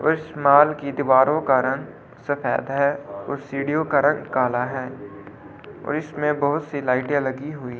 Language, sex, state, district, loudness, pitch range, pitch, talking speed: Hindi, male, Delhi, New Delhi, -22 LUFS, 130-150 Hz, 140 Hz, 170 wpm